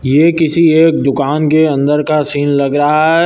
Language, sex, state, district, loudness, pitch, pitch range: Hindi, male, Uttar Pradesh, Lucknow, -11 LUFS, 150 Hz, 145-160 Hz